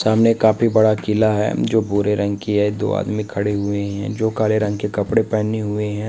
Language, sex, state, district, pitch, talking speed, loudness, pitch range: Hindi, male, Uttarakhand, Tehri Garhwal, 105 Hz, 235 wpm, -19 LUFS, 105-110 Hz